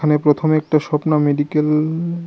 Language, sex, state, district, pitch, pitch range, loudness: Bengali, male, Tripura, West Tripura, 150 Hz, 150-155 Hz, -17 LUFS